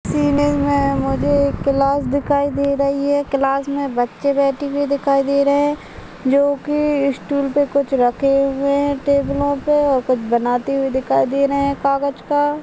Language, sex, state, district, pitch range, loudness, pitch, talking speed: Hindi, male, Maharashtra, Nagpur, 260-285 Hz, -18 LUFS, 280 Hz, 170 wpm